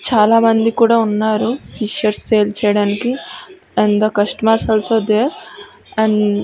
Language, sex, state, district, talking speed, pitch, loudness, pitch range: Telugu, female, Andhra Pradesh, Srikakulam, 130 wpm, 220 Hz, -15 LUFS, 210-230 Hz